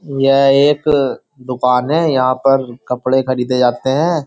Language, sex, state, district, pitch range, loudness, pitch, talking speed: Hindi, male, Uttar Pradesh, Jyotiba Phule Nagar, 125-140 Hz, -14 LUFS, 135 Hz, 140 wpm